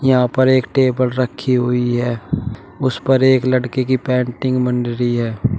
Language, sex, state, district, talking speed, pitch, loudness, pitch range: Hindi, male, Uttar Pradesh, Shamli, 170 wpm, 125 Hz, -17 LUFS, 125-130 Hz